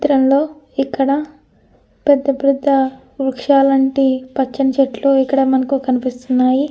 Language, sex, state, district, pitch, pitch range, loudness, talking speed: Telugu, female, Andhra Pradesh, Anantapur, 270 Hz, 265-275 Hz, -16 LUFS, 80 wpm